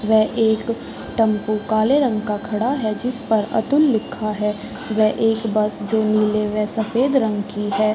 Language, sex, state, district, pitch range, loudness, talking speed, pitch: Hindi, female, Bihar, Sitamarhi, 215-225 Hz, -20 LUFS, 160 wpm, 215 Hz